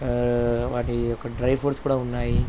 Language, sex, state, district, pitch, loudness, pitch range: Telugu, male, Andhra Pradesh, Krishna, 120 Hz, -25 LUFS, 120-125 Hz